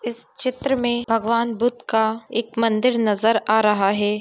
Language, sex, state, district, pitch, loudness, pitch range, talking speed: Hindi, female, Uttar Pradesh, Gorakhpur, 230 Hz, -20 LUFS, 220-240 Hz, 170 wpm